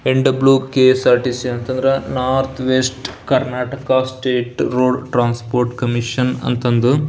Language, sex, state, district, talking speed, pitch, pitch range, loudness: Kannada, male, Karnataka, Belgaum, 120 wpm, 130 Hz, 125-130 Hz, -17 LUFS